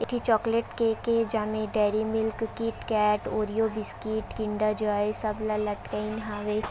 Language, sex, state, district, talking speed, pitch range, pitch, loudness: Chhattisgarhi, female, Chhattisgarh, Raigarh, 125 wpm, 210-225 Hz, 215 Hz, -28 LUFS